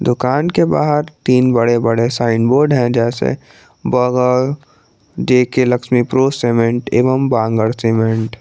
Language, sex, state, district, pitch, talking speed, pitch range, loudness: Hindi, male, Jharkhand, Garhwa, 125 Hz, 145 wpm, 115-130 Hz, -14 LUFS